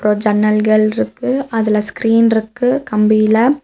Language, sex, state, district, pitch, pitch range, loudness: Tamil, female, Tamil Nadu, Nilgiris, 215 Hz, 215-230 Hz, -14 LUFS